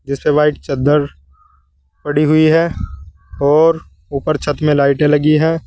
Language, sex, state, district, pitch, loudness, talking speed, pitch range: Hindi, male, Uttar Pradesh, Saharanpur, 145 Hz, -14 LUFS, 140 wpm, 130-155 Hz